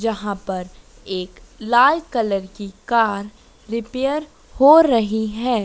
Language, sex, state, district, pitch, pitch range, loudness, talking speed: Hindi, female, Madhya Pradesh, Dhar, 225 Hz, 200-245 Hz, -19 LUFS, 115 wpm